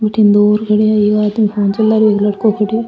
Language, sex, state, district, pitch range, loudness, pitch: Rajasthani, female, Rajasthan, Churu, 210-215 Hz, -12 LUFS, 210 Hz